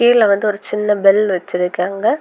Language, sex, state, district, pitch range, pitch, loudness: Tamil, female, Tamil Nadu, Kanyakumari, 190-210 Hz, 205 Hz, -15 LUFS